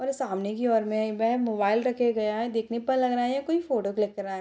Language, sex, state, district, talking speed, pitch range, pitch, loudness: Hindi, female, Bihar, Sitamarhi, 300 wpm, 215-250 Hz, 230 Hz, -27 LUFS